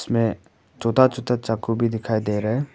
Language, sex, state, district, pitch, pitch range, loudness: Hindi, male, Arunachal Pradesh, Papum Pare, 115 Hz, 110-125 Hz, -22 LUFS